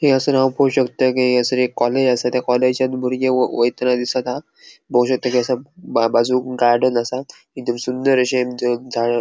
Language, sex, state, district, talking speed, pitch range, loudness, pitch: Konkani, male, Goa, North and South Goa, 170 wpm, 125-130 Hz, -18 LUFS, 125 Hz